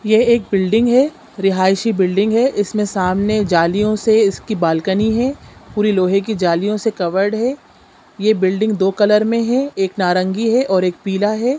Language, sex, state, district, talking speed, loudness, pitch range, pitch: Hindi, female, Chhattisgarh, Sukma, 175 wpm, -16 LUFS, 190-225 Hz, 210 Hz